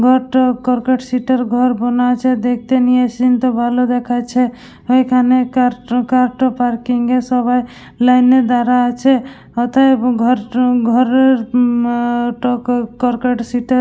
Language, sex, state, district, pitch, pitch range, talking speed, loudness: Bengali, female, West Bengal, Dakshin Dinajpur, 250 Hz, 245-255 Hz, 130 wpm, -14 LUFS